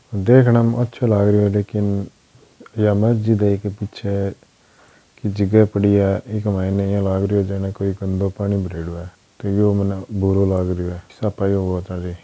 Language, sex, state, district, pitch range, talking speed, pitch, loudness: Hindi, male, Rajasthan, Churu, 95-105 Hz, 170 wpm, 100 Hz, -19 LUFS